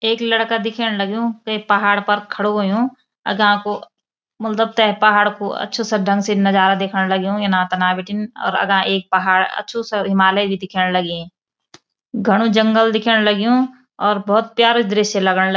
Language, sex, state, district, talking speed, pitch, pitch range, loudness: Garhwali, female, Uttarakhand, Uttarkashi, 175 wpm, 205 Hz, 195-225 Hz, -17 LUFS